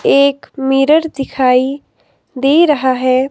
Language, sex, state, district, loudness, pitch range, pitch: Hindi, female, Himachal Pradesh, Shimla, -13 LUFS, 260-290 Hz, 270 Hz